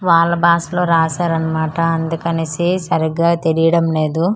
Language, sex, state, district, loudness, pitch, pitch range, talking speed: Telugu, female, Andhra Pradesh, Manyam, -16 LUFS, 165 Hz, 160-170 Hz, 110 wpm